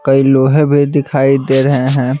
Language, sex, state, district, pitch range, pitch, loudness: Hindi, male, Bihar, Patna, 135-140 Hz, 135 Hz, -12 LUFS